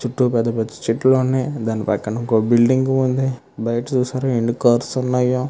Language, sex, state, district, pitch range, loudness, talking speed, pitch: Telugu, male, Andhra Pradesh, Krishna, 115-130 Hz, -19 LUFS, 165 wpm, 125 Hz